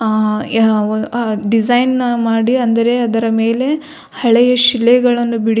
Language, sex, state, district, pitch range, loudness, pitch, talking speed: Kannada, female, Karnataka, Belgaum, 225-245 Hz, -14 LUFS, 235 Hz, 105 wpm